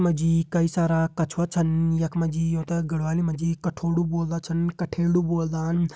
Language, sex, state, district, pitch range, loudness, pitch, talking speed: Hindi, male, Uttarakhand, Uttarkashi, 165-170 Hz, -25 LUFS, 165 Hz, 200 wpm